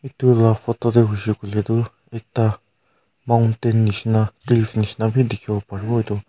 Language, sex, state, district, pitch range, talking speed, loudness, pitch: Nagamese, male, Nagaland, Kohima, 105-115 Hz, 150 wpm, -20 LUFS, 110 Hz